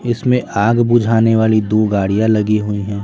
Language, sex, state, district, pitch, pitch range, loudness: Hindi, male, Bihar, Patna, 110 Hz, 105-115 Hz, -14 LUFS